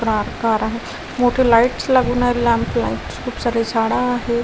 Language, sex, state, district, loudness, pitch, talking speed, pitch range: Marathi, female, Maharashtra, Washim, -18 LUFS, 235 Hz, 150 wpm, 230-245 Hz